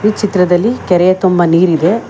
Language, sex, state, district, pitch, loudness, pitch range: Kannada, female, Karnataka, Bangalore, 180 Hz, -11 LUFS, 175-210 Hz